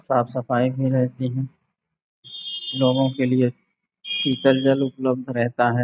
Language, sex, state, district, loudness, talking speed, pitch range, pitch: Hindi, male, Uttar Pradesh, Gorakhpur, -22 LUFS, 135 wpm, 125-165 Hz, 130 Hz